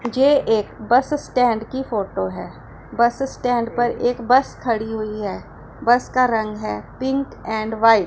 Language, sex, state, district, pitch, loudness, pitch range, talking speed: Hindi, female, Punjab, Pathankot, 235 Hz, -20 LUFS, 220-255 Hz, 170 wpm